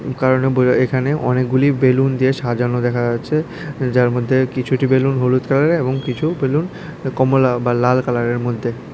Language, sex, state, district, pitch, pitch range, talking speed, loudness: Bengali, male, Tripura, West Tripura, 130 Hz, 125-135 Hz, 140 wpm, -17 LUFS